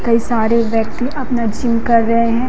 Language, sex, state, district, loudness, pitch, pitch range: Hindi, female, Madhya Pradesh, Umaria, -16 LUFS, 230 Hz, 230-240 Hz